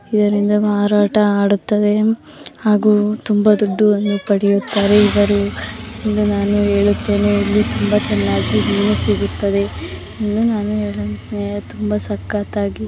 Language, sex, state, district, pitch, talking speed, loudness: Kannada, female, Karnataka, Dakshina Kannada, 205 Hz, 60 wpm, -16 LUFS